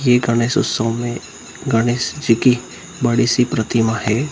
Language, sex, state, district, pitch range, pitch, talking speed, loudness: Hindi, male, Bihar, Darbhanga, 115-125 Hz, 120 Hz, 155 wpm, -17 LUFS